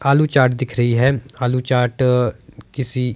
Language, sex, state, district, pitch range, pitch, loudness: Hindi, male, Himachal Pradesh, Shimla, 125-135 Hz, 125 Hz, -18 LUFS